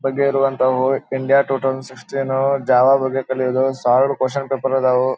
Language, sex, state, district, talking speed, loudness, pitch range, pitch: Kannada, male, Karnataka, Dharwad, 125 wpm, -18 LUFS, 130-135 Hz, 135 Hz